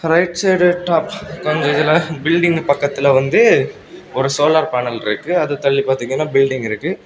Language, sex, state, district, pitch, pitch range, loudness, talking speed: Tamil, male, Tamil Nadu, Kanyakumari, 150 Hz, 135-165 Hz, -16 LUFS, 145 wpm